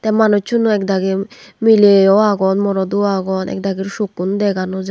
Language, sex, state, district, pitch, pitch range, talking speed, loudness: Chakma, female, Tripura, West Tripura, 200 Hz, 190-210 Hz, 135 wpm, -15 LUFS